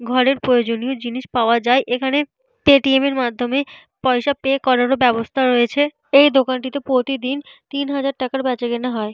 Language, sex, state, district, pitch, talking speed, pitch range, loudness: Bengali, female, Jharkhand, Jamtara, 260 Hz, 150 wpm, 245-275 Hz, -18 LUFS